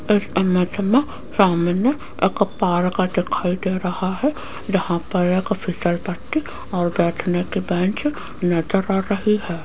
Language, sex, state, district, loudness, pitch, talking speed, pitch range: Hindi, female, Rajasthan, Jaipur, -21 LUFS, 185 Hz, 145 wpm, 180-205 Hz